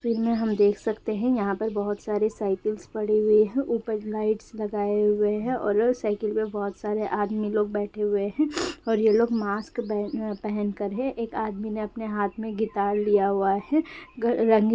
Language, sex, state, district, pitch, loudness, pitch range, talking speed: Hindi, female, Uttar Pradesh, Gorakhpur, 215 Hz, -26 LUFS, 205-225 Hz, 190 wpm